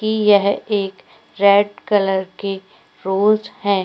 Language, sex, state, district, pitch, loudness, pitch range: Hindi, female, Goa, North and South Goa, 200 Hz, -17 LUFS, 195-205 Hz